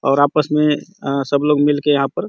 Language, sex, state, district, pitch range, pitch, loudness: Hindi, male, Chhattisgarh, Bastar, 140-150 Hz, 145 Hz, -17 LUFS